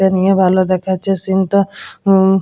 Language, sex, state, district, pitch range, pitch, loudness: Bengali, female, West Bengal, Jalpaiguri, 190-195 Hz, 190 Hz, -14 LUFS